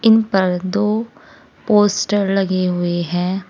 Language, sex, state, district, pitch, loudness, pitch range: Hindi, female, Uttar Pradesh, Saharanpur, 195 Hz, -17 LUFS, 180-210 Hz